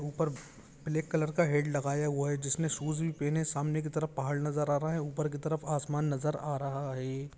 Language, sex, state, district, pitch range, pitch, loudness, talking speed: Hindi, male, Jharkhand, Jamtara, 145-155 Hz, 150 Hz, -33 LUFS, 235 wpm